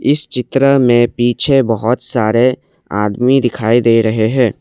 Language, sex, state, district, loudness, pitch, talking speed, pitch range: Hindi, male, Assam, Kamrup Metropolitan, -13 LUFS, 120 Hz, 145 wpm, 115-130 Hz